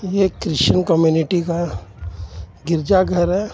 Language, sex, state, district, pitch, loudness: Hindi, male, Jharkhand, Ranchi, 165 Hz, -18 LUFS